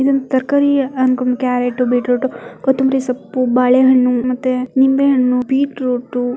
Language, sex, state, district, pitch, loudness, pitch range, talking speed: Kannada, female, Karnataka, Mysore, 255 Hz, -15 LUFS, 250-265 Hz, 140 wpm